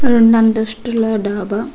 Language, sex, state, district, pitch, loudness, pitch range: Telugu, female, Andhra Pradesh, Krishna, 225 Hz, -15 LUFS, 215-230 Hz